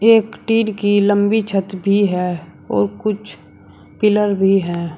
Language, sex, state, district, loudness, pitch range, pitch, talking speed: Hindi, male, Uttar Pradesh, Shamli, -17 LUFS, 180-210 Hz, 200 Hz, 145 wpm